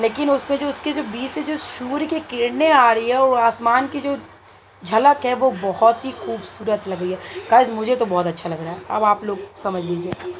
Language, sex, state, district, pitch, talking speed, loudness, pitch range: Hindi, female, Uttar Pradesh, Muzaffarnagar, 240 Hz, 235 wpm, -20 LUFS, 205-280 Hz